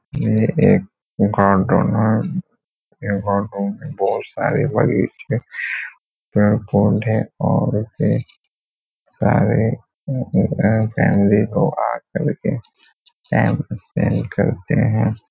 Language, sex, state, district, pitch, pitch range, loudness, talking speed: Hindi, male, Bihar, Jamui, 110 Hz, 100-120 Hz, -19 LUFS, 90 wpm